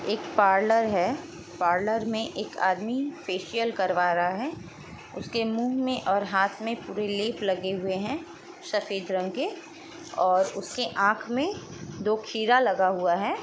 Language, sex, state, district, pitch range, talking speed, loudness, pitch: Hindi, female, Chhattisgarh, Sukma, 185-250 Hz, 155 wpm, -27 LUFS, 210 Hz